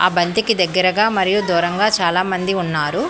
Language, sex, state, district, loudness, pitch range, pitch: Telugu, female, Telangana, Hyderabad, -17 LUFS, 175-200 Hz, 185 Hz